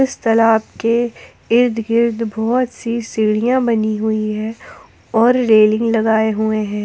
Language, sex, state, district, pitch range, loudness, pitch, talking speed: Hindi, female, Jharkhand, Ranchi, 220-235 Hz, -16 LUFS, 225 Hz, 150 wpm